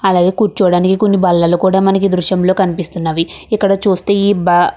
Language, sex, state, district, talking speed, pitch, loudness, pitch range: Telugu, female, Andhra Pradesh, Krishna, 150 wpm, 185 Hz, -13 LUFS, 180-195 Hz